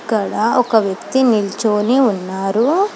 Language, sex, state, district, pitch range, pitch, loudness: Telugu, female, Telangana, Hyderabad, 200-255 Hz, 220 Hz, -16 LUFS